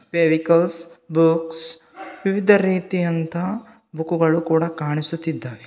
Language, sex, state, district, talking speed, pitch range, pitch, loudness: Kannada, male, Karnataka, Bidar, 95 wpm, 160-180 Hz, 165 Hz, -20 LUFS